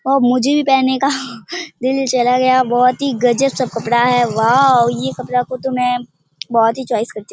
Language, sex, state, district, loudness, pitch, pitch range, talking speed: Hindi, female, Bihar, Purnia, -15 LUFS, 250 Hz, 240-265 Hz, 205 wpm